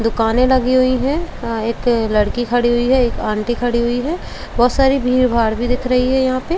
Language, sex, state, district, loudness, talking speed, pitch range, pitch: Hindi, female, Uttar Pradesh, Jalaun, -16 LUFS, 230 wpm, 235-255 Hz, 245 Hz